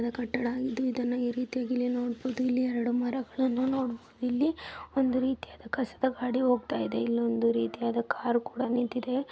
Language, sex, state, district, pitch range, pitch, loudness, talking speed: Kannada, female, Karnataka, Gulbarga, 240-255 Hz, 250 Hz, -30 LUFS, 105 wpm